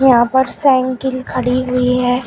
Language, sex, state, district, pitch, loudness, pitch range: Hindi, female, Uttar Pradesh, Shamli, 255 Hz, -15 LUFS, 250-260 Hz